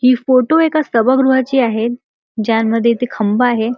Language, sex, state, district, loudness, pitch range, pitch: Marathi, male, Maharashtra, Chandrapur, -14 LUFS, 230-260 Hz, 245 Hz